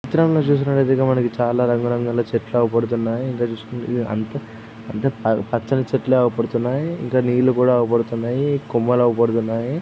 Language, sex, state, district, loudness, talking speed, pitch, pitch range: Telugu, male, Andhra Pradesh, Chittoor, -19 LUFS, 135 wpm, 120 Hz, 115-130 Hz